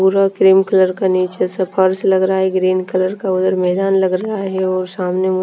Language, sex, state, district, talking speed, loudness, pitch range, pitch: Hindi, female, Punjab, Fazilka, 230 wpm, -16 LUFS, 185-190 Hz, 190 Hz